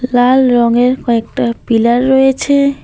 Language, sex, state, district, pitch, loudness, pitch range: Bengali, female, West Bengal, Alipurduar, 250 Hz, -12 LUFS, 235-265 Hz